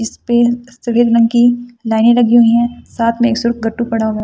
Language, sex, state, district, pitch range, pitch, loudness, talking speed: Hindi, female, Delhi, New Delhi, 230-240 Hz, 235 Hz, -13 LUFS, 200 wpm